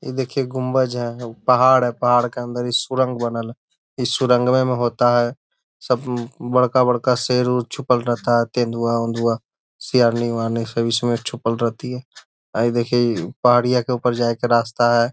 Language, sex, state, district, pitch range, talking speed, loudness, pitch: Magahi, male, Bihar, Gaya, 120-125 Hz, 175 wpm, -19 LUFS, 120 Hz